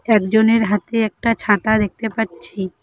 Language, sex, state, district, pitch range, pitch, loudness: Bengali, female, West Bengal, Cooch Behar, 205-225 Hz, 220 Hz, -18 LUFS